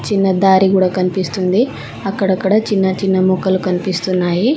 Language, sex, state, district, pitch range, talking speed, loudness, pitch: Telugu, female, Telangana, Mahabubabad, 185-195 Hz, 105 wpm, -15 LUFS, 190 Hz